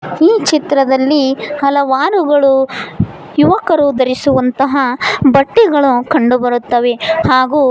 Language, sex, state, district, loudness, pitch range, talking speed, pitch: Kannada, female, Karnataka, Koppal, -12 LUFS, 255-295 Hz, 80 wpm, 275 Hz